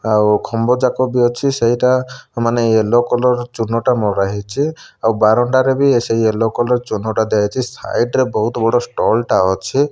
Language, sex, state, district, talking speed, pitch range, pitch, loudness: Odia, male, Odisha, Malkangiri, 165 wpm, 110-125 Hz, 120 Hz, -16 LUFS